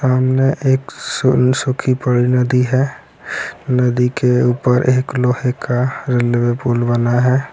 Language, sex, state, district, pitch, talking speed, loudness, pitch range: Hindi, male, Bihar, Lakhisarai, 125 Hz, 125 wpm, -16 LUFS, 125-130 Hz